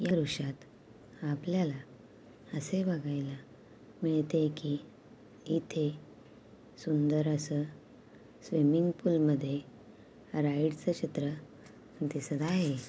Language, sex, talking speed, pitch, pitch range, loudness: Marathi, female, 80 wpm, 150 Hz, 145-160 Hz, -33 LUFS